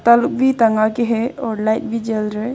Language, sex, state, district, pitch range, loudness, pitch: Hindi, female, Arunachal Pradesh, Longding, 220-235 Hz, -17 LUFS, 230 Hz